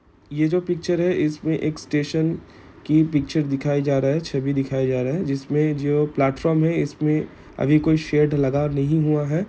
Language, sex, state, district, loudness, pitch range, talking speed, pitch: Hindi, male, Bihar, Gopalganj, -21 LUFS, 140-160 Hz, 190 wpm, 150 Hz